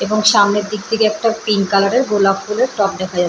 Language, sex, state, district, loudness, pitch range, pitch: Bengali, female, West Bengal, Purulia, -15 LUFS, 195-220 Hz, 210 Hz